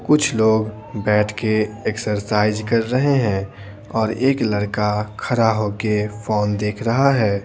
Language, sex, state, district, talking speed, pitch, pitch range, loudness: Hindi, male, Bihar, Patna, 135 wpm, 105 Hz, 105-115 Hz, -19 LUFS